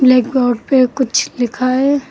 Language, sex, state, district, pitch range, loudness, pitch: Hindi, female, Uttar Pradesh, Lucknow, 245-265 Hz, -15 LUFS, 255 Hz